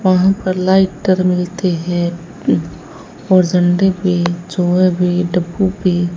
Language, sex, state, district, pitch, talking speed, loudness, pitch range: Hindi, female, Rajasthan, Bikaner, 180 Hz, 125 wpm, -15 LUFS, 175-185 Hz